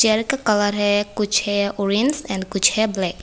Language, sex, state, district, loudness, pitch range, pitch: Hindi, female, Tripura, West Tripura, -19 LUFS, 200-220 Hz, 205 Hz